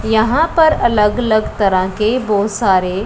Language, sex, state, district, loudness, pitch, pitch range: Hindi, female, Punjab, Pathankot, -14 LUFS, 215 Hz, 200-240 Hz